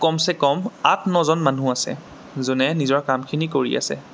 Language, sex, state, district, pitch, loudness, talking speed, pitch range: Assamese, male, Assam, Sonitpur, 140 Hz, -21 LUFS, 130 wpm, 130-160 Hz